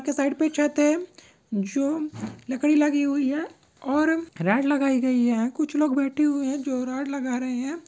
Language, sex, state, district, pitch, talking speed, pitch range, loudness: Maithili, female, Bihar, Begusarai, 280 Hz, 190 wpm, 260-300 Hz, -24 LUFS